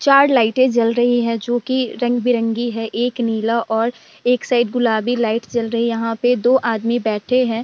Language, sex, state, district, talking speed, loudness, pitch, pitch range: Hindi, female, Bihar, Vaishali, 195 wpm, -18 LUFS, 240 Hz, 230-245 Hz